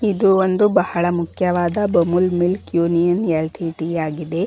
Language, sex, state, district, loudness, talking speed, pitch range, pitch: Kannada, female, Karnataka, Bangalore, -18 LUFS, 120 wpm, 170-190 Hz, 175 Hz